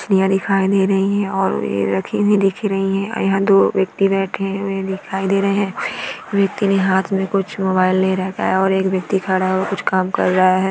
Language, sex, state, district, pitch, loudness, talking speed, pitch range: Hindi, female, Bihar, Araria, 195 Hz, -18 LUFS, 245 wpm, 190-195 Hz